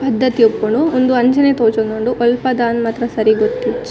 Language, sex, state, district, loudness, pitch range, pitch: Tulu, female, Karnataka, Dakshina Kannada, -15 LUFS, 225-255 Hz, 240 Hz